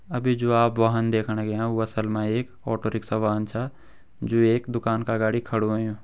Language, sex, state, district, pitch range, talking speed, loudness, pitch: Garhwali, male, Uttarakhand, Uttarkashi, 110-115 Hz, 210 wpm, -24 LUFS, 115 Hz